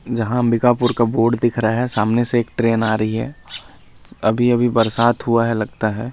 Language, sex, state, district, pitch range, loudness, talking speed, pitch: Hindi, male, Chhattisgarh, Sarguja, 110-120 Hz, -18 LUFS, 195 wpm, 115 Hz